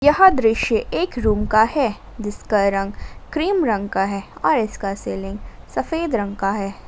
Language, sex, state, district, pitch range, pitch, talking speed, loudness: Hindi, female, Jharkhand, Ranchi, 200-260 Hz, 215 Hz, 165 wpm, -20 LUFS